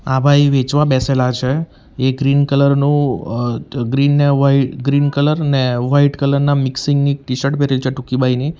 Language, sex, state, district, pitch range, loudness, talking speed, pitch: Gujarati, male, Gujarat, Valsad, 130-145 Hz, -15 LUFS, 180 wpm, 140 Hz